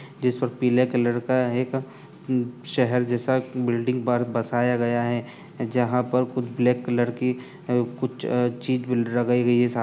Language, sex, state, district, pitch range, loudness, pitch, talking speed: Hindi, male, Uttar Pradesh, Etah, 120-125 Hz, -24 LUFS, 125 Hz, 155 wpm